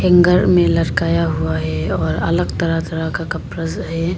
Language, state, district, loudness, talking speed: Hindi, Arunachal Pradesh, Lower Dibang Valley, -17 LUFS, 185 wpm